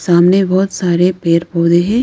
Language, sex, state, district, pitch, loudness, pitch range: Hindi, female, Arunachal Pradesh, Lower Dibang Valley, 175 Hz, -13 LUFS, 170-190 Hz